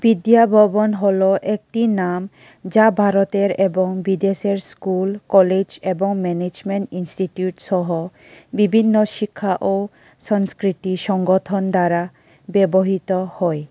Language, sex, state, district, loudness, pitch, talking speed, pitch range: Bengali, female, Tripura, West Tripura, -18 LUFS, 195 Hz, 100 wpm, 185-205 Hz